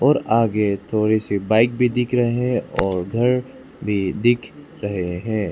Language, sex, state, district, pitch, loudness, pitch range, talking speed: Hindi, male, Arunachal Pradesh, Lower Dibang Valley, 110 Hz, -20 LUFS, 100-120 Hz, 150 wpm